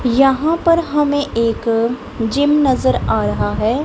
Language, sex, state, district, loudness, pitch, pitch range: Hindi, female, Punjab, Kapurthala, -16 LUFS, 250 Hz, 225-285 Hz